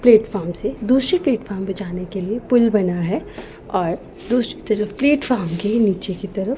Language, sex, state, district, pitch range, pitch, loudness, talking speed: Hindi, female, Punjab, Pathankot, 195-245 Hz, 210 Hz, -20 LUFS, 180 wpm